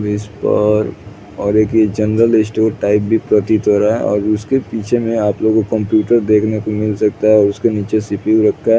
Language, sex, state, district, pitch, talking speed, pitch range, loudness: Hindi, male, Chhattisgarh, Bilaspur, 110 Hz, 220 wpm, 105-110 Hz, -14 LUFS